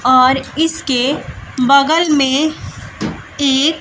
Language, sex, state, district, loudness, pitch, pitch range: Hindi, female, Bihar, West Champaran, -14 LUFS, 280 Hz, 265-310 Hz